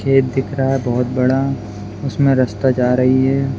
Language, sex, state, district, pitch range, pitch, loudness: Hindi, male, Bihar, Madhepura, 125-135 Hz, 130 Hz, -17 LUFS